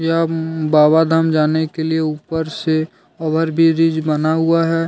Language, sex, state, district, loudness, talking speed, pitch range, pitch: Hindi, male, Jharkhand, Deoghar, -16 LUFS, 160 wpm, 155-165 Hz, 160 Hz